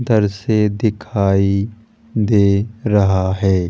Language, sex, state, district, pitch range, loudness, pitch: Hindi, male, Rajasthan, Jaipur, 100-110 Hz, -17 LUFS, 105 Hz